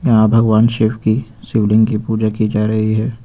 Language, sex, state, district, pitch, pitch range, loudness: Hindi, male, Uttar Pradesh, Lucknow, 110 Hz, 110-115 Hz, -15 LUFS